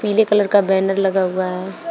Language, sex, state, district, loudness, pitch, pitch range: Hindi, female, Uttar Pradesh, Shamli, -17 LUFS, 195 Hz, 190-210 Hz